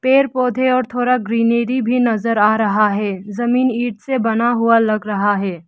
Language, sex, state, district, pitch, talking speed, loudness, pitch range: Hindi, female, Arunachal Pradesh, Lower Dibang Valley, 230 Hz, 190 wpm, -16 LUFS, 215-250 Hz